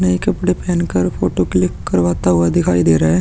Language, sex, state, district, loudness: Hindi, male, Chhattisgarh, Sukma, -16 LUFS